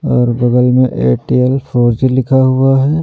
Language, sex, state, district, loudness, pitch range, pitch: Hindi, male, Delhi, New Delhi, -12 LUFS, 125-135 Hz, 130 Hz